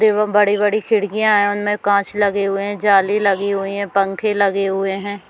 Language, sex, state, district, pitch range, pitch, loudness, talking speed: Hindi, female, Chhattisgarh, Bilaspur, 200-210 Hz, 205 Hz, -17 LUFS, 205 wpm